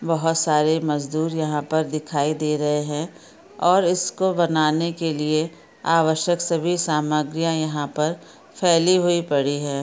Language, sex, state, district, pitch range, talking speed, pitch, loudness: Hindi, female, Chhattisgarh, Raigarh, 150-170 Hz, 140 wpm, 160 Hz, -21 LUFS